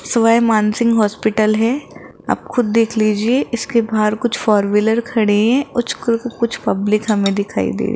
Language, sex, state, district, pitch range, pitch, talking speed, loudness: Hindi, female, Rajasthan, Jaipur, 215-235 Hz, 225 Hz, 160 wpm, -16 LUFS